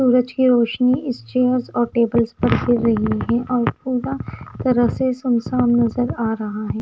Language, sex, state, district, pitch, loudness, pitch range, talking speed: Hindi, female, Himachal Pradesh, Shimla, 240 Hz, -19 LUFS, 230-250 Hz, 165 wpm